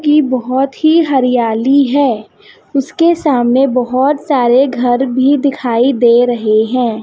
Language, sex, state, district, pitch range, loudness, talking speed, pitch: Hindi, female, Chhattisgarh, Raipur, 245-280 Hz, -12 LUFS, 130 wpm, 260 Hz